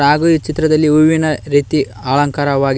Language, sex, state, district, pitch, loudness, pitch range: Kannada, male, Karnataka, Koppal, 145 Hz, -14 LUFS, 140-155 Hz